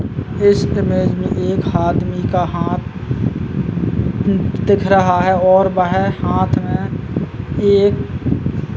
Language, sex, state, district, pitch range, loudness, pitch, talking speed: Hindi, male, Uttar Pradesh, Muzaffarnagar, 180-200 Hz, -16 LUFS, 190 Hz, 110 wpm